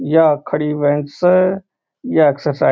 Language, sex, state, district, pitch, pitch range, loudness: Marwari, male, Rajasthan, Churu, 150 Hz, 145-180 Hz, -16 LUFS